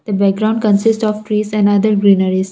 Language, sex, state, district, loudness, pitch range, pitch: English, female, Assam, Kamrup Metropolitan, -14 LUFS, 200-215 Hz, 210 Hz